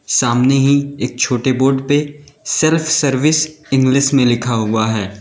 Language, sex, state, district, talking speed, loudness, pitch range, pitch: Hindi, male, Uttar Pradesh, Lalitpur, 150 wpm, -15 LUFS, 125-145 Hz, 135 Hz